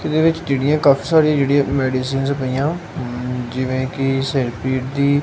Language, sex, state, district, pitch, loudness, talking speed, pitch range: Punjabi, male, Punjab, Kapurthala, 135 Hz, -18 LUFS, 150 wpm, 130-145 Hz